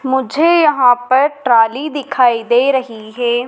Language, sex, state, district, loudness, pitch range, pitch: Hindi, female, Madhya Pradesh, Dhar, -13 LUFS, 240-280 Hz, 255 Hz